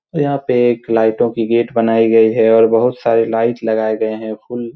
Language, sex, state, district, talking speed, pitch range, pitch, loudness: Hindi, male, Bihar, Supaul, 240 wpm, 110-120 Hz, 115 Hz, -14 LUFS